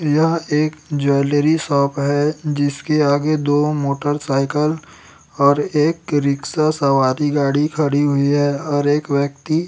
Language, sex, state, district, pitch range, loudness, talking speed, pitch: Hindi, male, Chhattisgarh, Raipur, 140-150 Hz, -18 LUFS, 130 wpm, 145 Hz